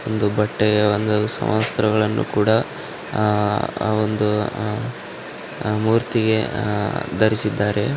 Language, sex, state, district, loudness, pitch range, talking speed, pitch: Kannada, male, Karnataka, Raichur, -20 LUFS, 105-110 Hz, 60 wpm, 105 Hz